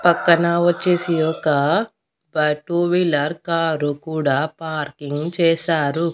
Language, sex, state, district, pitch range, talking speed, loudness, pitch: Telugu, female, Andhra Pradesh, Annamaya, 150-170 Hz, 100 wpm, -19 LUFS, 165 Hz